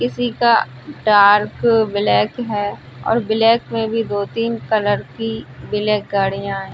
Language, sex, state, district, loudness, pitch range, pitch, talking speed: Hindi, female, Uttar Pradesh, Budaun, -17 LUFS, 205-230 Hz, 215 Hz, 135 wpm